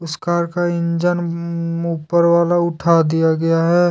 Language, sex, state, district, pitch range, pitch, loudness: Hindi, male, Jharkhand, Deoghar, 165-175 Hz, 170 Hz, -17 LUFS